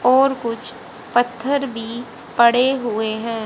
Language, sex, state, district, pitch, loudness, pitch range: Hindi, female, Haryana, Charkhi Dadri, 240 Hz, -19 LUFS, 230-255 Hz